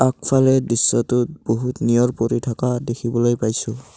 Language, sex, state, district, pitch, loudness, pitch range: Assamese, male, Assam, Kamrup Metropolitan, 120 Hz, -19 LUFS, 120-130 Hz